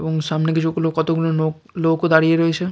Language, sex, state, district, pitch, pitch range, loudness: Bengali, male, West Bengal, Jalpaiguri, 160 Hz, 160-165 Hz, -19 LUFS